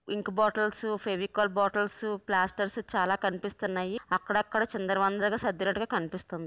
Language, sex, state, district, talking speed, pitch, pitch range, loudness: Telugu, female, Andhra Pradesh, Visakhapatnam, 110 wpm, 205 Hz, 195-210 Hz, -30 LUFS